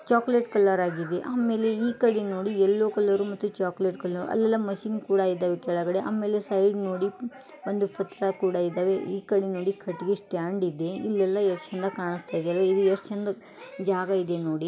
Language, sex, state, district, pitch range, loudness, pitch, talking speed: Kannada, female, Karnataka, Gulbarga, 185-205 Hz, -26 LUFS, 195 Hz, 155 wpm